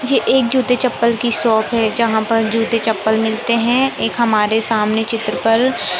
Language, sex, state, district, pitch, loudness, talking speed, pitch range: Hindi, male, Madhya Pradesh, Katni, 225 Hz, -15 LUFS, 180 wpm, 220-235 Hz